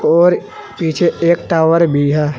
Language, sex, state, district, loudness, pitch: Hindi, male, Uttar Pradesh, Saharanpur, -14 LUFS, 170 Hz